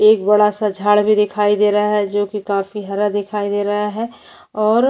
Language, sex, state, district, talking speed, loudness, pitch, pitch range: Hindi, female, Uttar Pradesh, Jyotiba Phule Nagar, 220 wpm, -17 LUFS, 210 Hz, 205-210 Hz